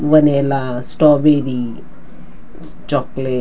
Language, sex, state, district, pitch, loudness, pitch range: Marathi, female, Maharashtra, Dhule, 140 Hz, -16 LUFS, 125-150 Hz